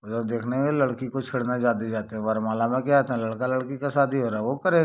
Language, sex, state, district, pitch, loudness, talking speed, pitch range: Hindi, male, Jharkhand, Sahebganj, 125 Hz, -25 LUFS, 245 wpm, 115-135 Hz